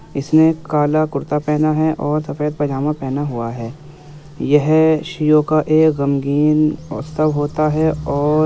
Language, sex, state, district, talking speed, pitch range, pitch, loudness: Hindi, male, Uttar Pradesh, Muzaffarnagar, 150 wpm, 145-155 Hz, 150 Hz, -17 LUFS